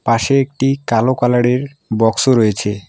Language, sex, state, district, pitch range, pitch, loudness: Bengali, female, West Bengal, Alipurduar, 115-135 Hz, 120 Hz, -15 LUFS